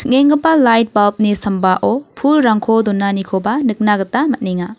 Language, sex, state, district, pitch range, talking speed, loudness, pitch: Garo, female, Meghalaya, West Garo Hills, 200-265 Hz, 100 wpm, -14 LUFS, 220 Hz